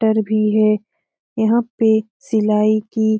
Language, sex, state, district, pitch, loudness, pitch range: Hindi, female, Bihar, Lakhisarai, 220 Hz, -17 LUFS, 215-220 Hz